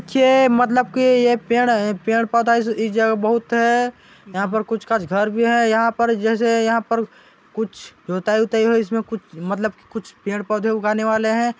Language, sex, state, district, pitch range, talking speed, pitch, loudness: Chhattisgarhi, male, Chhattisgarh, Balrampur, 215-235 Hz, 180 wpm, 225 Hz, -19 LUFS